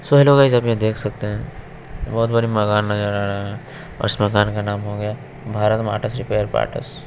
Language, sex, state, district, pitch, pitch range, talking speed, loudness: Hindi, female, Bihar, West Champaran, 105 Hz, 105-115 Hz, 230 wpm, -19 LUFS